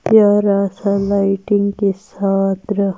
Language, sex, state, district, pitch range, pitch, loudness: Hindi, female, Delhi, New Delhi, 195-205 Hz, 200 Hz, -16 LUFS